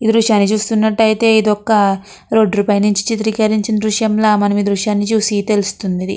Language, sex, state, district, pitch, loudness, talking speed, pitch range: Telugu, female, Andhra Pradesh, Krishna, 215 Hz, -14 LUFS, 145 wpm, 205-220 Hz